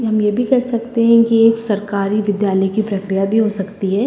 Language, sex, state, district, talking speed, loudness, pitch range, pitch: Hindi, female, Uttar Pradesh, Jyotiba Phule Nagar, 220 wpm, -16 LUFS, 200-230 Hz, 210 Hz